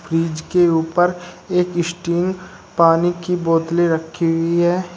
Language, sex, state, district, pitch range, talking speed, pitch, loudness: Hindi, male, Uttar Pradesh, Shamli, 165-180 Hz, 135 wpm, 175 Hz, -18 LUFS